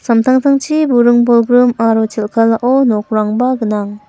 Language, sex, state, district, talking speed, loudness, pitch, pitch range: Garo, female, Meghalaya, West Garo Hills, 90 wpm, -12 LUFS, 235 Hz, 220-250 Hz